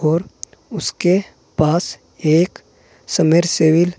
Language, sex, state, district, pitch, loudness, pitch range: Hindi, male, Uttar Pradesh, Saharanpur, 170 Hz, -17 LUFS, 160-175 Hz